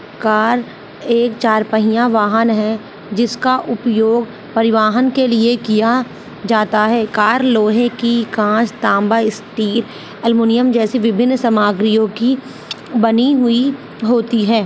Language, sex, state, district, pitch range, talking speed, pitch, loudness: Hindi, female, Uttar Pradesh, Gorakhpur, 215-240 Hz, 120 wpm, 225 Hz, -15 LUFS